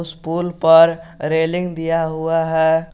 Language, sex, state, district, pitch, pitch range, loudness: Hindi, male, Jharkhand, Garhwa, 165 Hz, 160-165 Hz, -17 LUFS